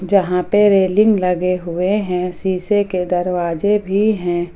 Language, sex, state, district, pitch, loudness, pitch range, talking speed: Hindi, female, Jharkhand, Ranchi, 185 Hz, -17 LUFS, 180-205 Hz, 145 wpm